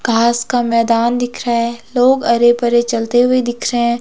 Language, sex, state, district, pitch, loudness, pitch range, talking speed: Hindi, female, Himachal Pradesh, Shimla, 240 Hz, -14 LUFS, 235-245 Hz, 210 wpm